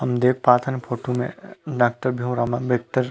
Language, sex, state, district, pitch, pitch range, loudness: Chhattisgarhi, male, Chhattisgarh, Rajnandgaon, 125 Hz, 120-130 Hz, -22 LUFS